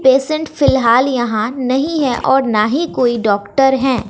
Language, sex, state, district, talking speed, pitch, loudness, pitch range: Hindi, female, Bihar, West Champaran, 160 wpm, 260 Hz, -14 LUFS, 235-270 Hz